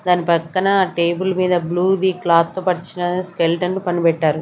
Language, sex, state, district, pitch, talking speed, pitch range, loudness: Telugu, female, Andhra Pradesh, Sri Satya Sai, 180 Hz, 165 wpm, 170-185 Hz, -18 LUFS